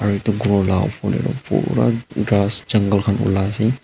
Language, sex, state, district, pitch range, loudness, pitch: Nagamese, male, Nagaland, Dimapur, 100-110 Hz, -18 LUFS, 105 Hz